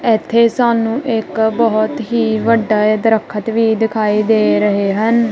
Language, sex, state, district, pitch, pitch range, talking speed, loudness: Punjabi, female, Punjab, Kapurthala, 225 Hz, 215-230 Hz, 145 wpm, -14 LUFS